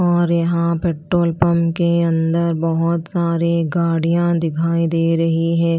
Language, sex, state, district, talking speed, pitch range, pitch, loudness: Hindi, female, Chhattisgarh, Raipur, 135 wpm, 165-170 Hz, 170 Hz, -18 LUFS